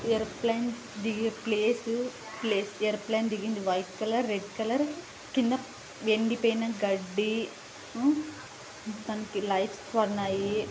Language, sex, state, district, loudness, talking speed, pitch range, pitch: Telugu, female, Andhra Pradesh, Anantapur, -30 LUFS, 85 wpm, 205-230 Hz, 220 Hz